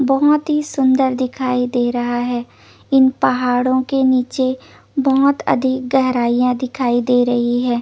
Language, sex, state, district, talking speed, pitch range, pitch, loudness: Hindi, female, Chandigarh, Chandigarh, 140 wpm, 245-265 Hz, 255 Hz, -17 LUFS